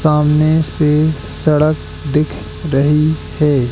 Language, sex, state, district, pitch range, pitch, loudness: Hindi, male, Madhya Pradesh, Katni, 145-155 Hz, 150 Hz, -15 LUFS